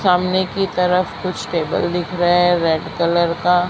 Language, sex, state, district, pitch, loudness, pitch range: Hindi, female, Maharashtra, Mumbai Suburban, 175 Hz, -18 LUFS, 170-180 Hz